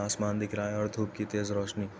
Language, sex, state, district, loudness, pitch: Hindi, male, Uttar Pradesh, Etah, -32 LUFS, 105 Hz